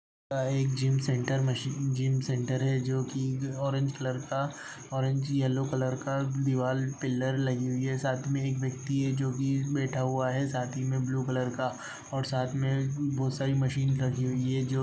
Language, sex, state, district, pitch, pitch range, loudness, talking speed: Hindi, male, Uttar Pradesh, Budaun, 130 Hz, 130-135 Hz, -30 LUFS, 200 wpm